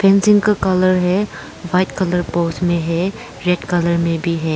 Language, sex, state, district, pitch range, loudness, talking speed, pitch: Hindi, female, Arunachal Pradesh, Lower Dibang Valley, 170-190 Hz, -17 LUFS, 185 wpm, 180 Hz